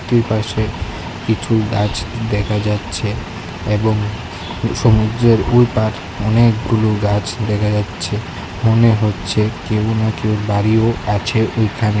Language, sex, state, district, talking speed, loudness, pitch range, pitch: Bengali, male, Tripura, West Tripura, 105 wpm, -17 LUFS, 105-115 Hz, 110 Hz